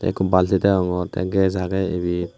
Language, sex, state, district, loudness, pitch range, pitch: Chakma, male, Tripura, West Tripura, -20 LUFS, 90-95 Hz, 95 Hz